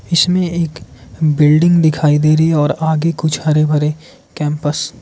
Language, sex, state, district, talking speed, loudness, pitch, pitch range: Hindi, male, Arunachal Pradesh, Lower Dibang Valley, 170 wpm, -14 LUFS, 155 Hz, 150-165 Hz